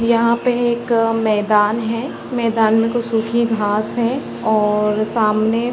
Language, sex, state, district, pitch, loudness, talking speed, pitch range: Hindi, female, Bihar, Sitamarhi, 225 Hz, -17 LUFS, 155 wpm, 215-235 Hz